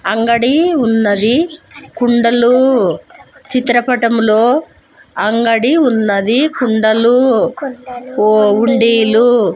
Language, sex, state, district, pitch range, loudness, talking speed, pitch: Telugu, female, Andhra Pradesh, Sri Satya Sai, 225-255 Hz, -12 LUFS, 65 wpm, 240 Hz